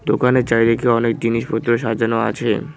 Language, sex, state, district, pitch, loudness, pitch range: Bengali, male, West Bengal, Cooch Behar, 115 Hz, -18 LUFS, 115-120 Hz